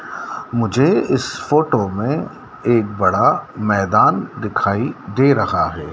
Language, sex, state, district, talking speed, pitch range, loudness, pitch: Hindi, male, Madhya Pradesh, Dhar, 110 wpm, 105-120 Hz, -17 LUFS, 110 Hz